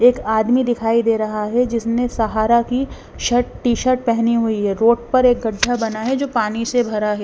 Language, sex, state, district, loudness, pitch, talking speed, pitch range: Hindi, female, Bihar, West Champaran, -18 LUFS, 235 Hz, 205 wpm, 220-245 Hz